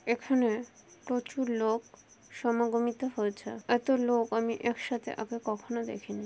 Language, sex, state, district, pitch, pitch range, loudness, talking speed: Bengali, female, West Bengal, Kolkata, 235 Hz, 225-240 Hz, -31 LUFS, 115 wpm